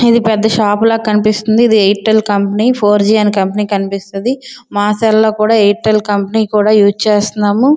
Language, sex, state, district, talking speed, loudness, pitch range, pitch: Telugu, female, Andhra Pradesh, Srikakulam, 155 wpm, -12 LUFS, 205-220 Hz, 215 Hz